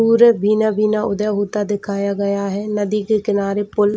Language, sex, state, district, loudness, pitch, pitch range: Hindi, female, Chhattisgarh, Bilaspur, -18 LUFS, 205 Hz, 200-215 Hz